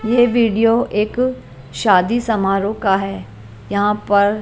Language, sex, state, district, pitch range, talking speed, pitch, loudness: Hindi, female, Himachal Pradesh, Shimla, 190-230 Hz, 120 wpm, 205 Hz, -17 LUFS